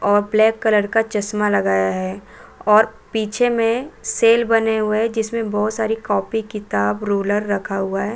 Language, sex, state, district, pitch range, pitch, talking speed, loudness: Hindi, female, Chhattisgarh, Balrampur, 205-225 Hz, 210 Hz, 170 wpm, -19 LUFS